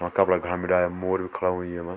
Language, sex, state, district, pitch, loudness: Garhwali, male, Uttarakhand, Tehri Garhwal, 90 Hz, -25 LUFS